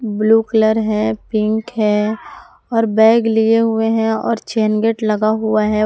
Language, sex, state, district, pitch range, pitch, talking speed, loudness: Hindi, female, Jharkhand, Palamu, 215-225 Hz, 220 Hz, 165 wpm, -16 LUFS